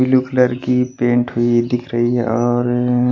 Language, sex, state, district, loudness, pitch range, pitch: Hindi, male, Maharashtra, Washim, -17 LUFS, 120-125 Hz, 120 Hz